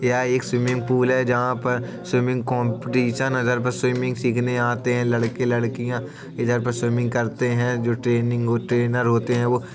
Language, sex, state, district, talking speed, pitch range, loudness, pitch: Hindi, male, Uttar Pradesh, Jalaun, 170 wpm, 120-125 Hz, -22 LUFS, 125 Hz